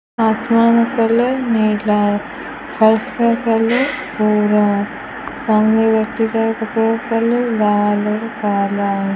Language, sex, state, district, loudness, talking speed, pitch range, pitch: Hindi, female, Rajasthan, Bikaner, -16 LUFS, 130 wpm, 210-235 Hz, 225 Hz